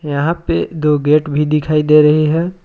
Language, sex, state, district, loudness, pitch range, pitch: Hindi, male, Jharkhand, Palamu, -14 LUFS, 150-160 Hz, 150 Hz